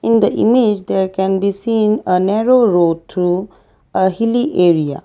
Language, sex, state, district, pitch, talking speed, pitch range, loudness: English, female, Assam, Kamrup Metropolitan, 190 Hz, 165 wpm, 180-225 Hz, -15 LUFS